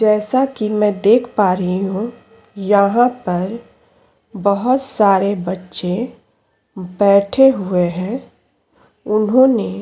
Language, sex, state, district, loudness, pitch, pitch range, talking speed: Hindi, female, Uttar Pradesh, Jyotiba Phule Nagar, -16 LUFS, 205 Hz, 190-240 Hz, 100 wpm